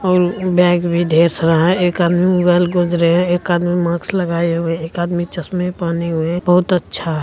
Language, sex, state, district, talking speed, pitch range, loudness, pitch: Hindi, male, Bihar, Araria, 230 wpm, 170-180 Hz, -16 LUFS, 175 Hz